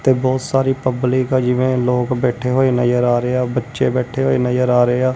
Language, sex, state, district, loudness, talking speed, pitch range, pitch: Punjabi, male, Punjab, Kapurthala, -17 LUFS, 230 wpm, 125-130 Hz, 125 Hz